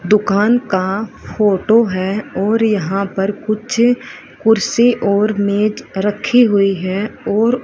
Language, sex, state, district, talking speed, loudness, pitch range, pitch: Hindi, female, Haryana, Rohtak, 120 wpm, -15 LUFS, 195-225 Hz, 210 Hz